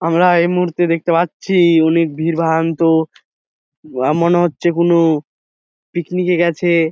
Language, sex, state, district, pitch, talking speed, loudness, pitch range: Bengali, male, West Bengal, Dakshin Dinajpur, 165 Hz, 115 wpm, -15 LUFS, 160-175 Hz